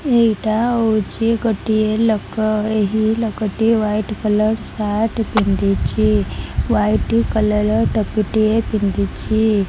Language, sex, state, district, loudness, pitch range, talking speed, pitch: Odia, female, Odisha, Malkangiri, -18 LUFS, 195-220 Hz, 100 wpm, 215 Hz